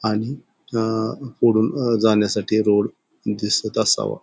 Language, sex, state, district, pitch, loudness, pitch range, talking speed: Marathi, male, Maharashtra, Pune, 110 Hz, -20 LUFS, 105-115 Hz, 100 wpm